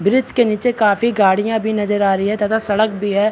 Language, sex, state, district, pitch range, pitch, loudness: Hindi, male, Bihar, Vaishali, 205-225 Hz, 210 Hz, -16 LUFS